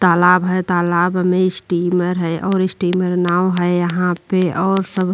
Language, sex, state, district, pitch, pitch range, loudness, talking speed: Hindi, female, Uttar Pradesh, Jyotiba Phule Nagar, 180 Hz, 175-185 Hz, -17 LUFS, 175 wpm